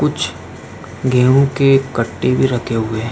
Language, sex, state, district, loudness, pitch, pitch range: Hindi, male, Uttar Pradesh, Jalaun, -16 LUFS, 125 Hz, 115-135 Hz